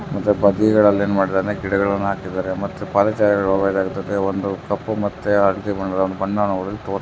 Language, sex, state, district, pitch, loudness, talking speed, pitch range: Kannada, male, Karnataka, Dakshina Kannada, 100 Hz, -19 LUFS, 165 wpm, 95-100 Hz